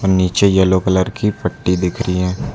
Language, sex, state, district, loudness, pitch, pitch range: Hindi, male, Uttar Pradesh, Lucknow, -16 LUFS, 95 Hz, 90-100 Hz